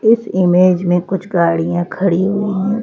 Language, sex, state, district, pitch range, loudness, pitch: Hindi, female, Madhya Pradesh, Bhopal, 175-200 Hz, -15 LUFS, 185 Hz